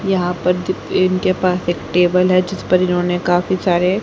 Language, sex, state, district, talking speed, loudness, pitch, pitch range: Hindi, female, Haryana, Jhajjar, 210 wpm, -16 LUFS, 180 Hz, 180-185 Hz